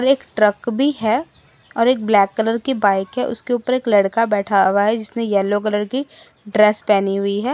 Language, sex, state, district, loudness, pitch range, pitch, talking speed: Hindi, female, Assam, Sonitpur, -18 LUFS, 205-250 Hz, 220 Hz, 205 wpm